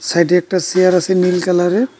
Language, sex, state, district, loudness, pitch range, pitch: Bengali, male, West Bengal, Cooch Behar, -14 LUFS, 180-185 Hz, 180 Hz